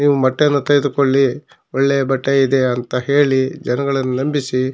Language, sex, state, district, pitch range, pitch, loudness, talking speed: Kannada, male, Karnataka, Shimoga, 130-140 Hz, 135 Hz, -16 LUFS, 125 wpm